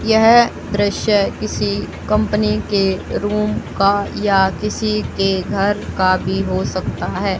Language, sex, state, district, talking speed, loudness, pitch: Hindi, female, Haryana, Charkhi Dadri, 130 wpm, -17 LUFS, 195 Hz